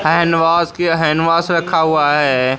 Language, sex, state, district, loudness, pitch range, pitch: Hindi, male, Maharashtra, Mumbai Suburban, -14 LUFS, 150-170 Hz, 165 Hz